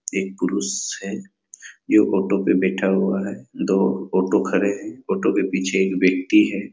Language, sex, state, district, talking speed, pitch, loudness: Hindi, male, Chhattisgarh, Raigarh, 170 wpm, 95 Hz, -21 LUFS